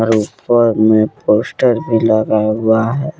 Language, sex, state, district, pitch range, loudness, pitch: Hindi, male, Jharkhand, Deoghar, 110-120 Hz, -14 LUFS, 110 Hz